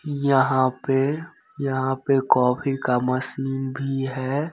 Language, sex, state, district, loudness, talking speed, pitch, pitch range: Hindi, male, Bihar, Begusarai, -23 LUFS, 120 wpm, 135 Hz, 130-140 Hz